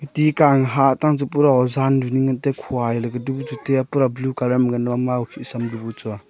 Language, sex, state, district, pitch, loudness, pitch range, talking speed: Wancho, male, Arunachal Pradesh, Longding, 130 Hz, -20 LUFS, 120-140 Hz, 250 wpm